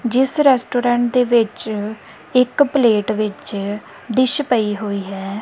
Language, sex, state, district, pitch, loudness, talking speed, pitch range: Punjabi, female, Punjab, Kapurthala, 235 Hz, -18 LUFS, 120 wpm, 210-250 Hz